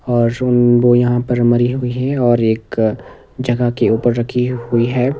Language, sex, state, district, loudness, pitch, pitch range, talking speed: Hindi, male, Himachal Pradesh, Shimla, -15 LUFS, 120 Hz, 120-125 Hz, 175 wpm